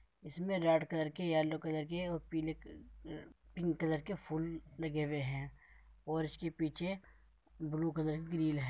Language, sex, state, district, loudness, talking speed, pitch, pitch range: Hindi, male, Uttar Pradesh, Muzaffarnagar, -38 LUFS, 170 wpm, 160 Hz, 155-165 Hz